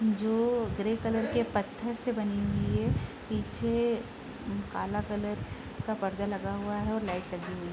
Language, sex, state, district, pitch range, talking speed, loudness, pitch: Hindi, female, Bihar, Purnia, 200-230 Hz, 170 wpm, -32 LUFS, 215 Hz